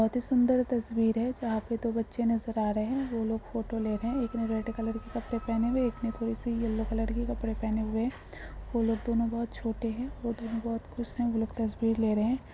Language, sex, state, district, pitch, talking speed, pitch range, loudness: Hindi, female, Bihar, Supaul, 230 Hz, 265 wpm, 225-235 Hz, -31 LUFS